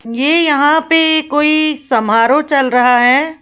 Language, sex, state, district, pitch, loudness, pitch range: Hindi, female, Uttar Pradesh, Lalitpur, 290 Hz, -11 LUFS, 250-310 Hz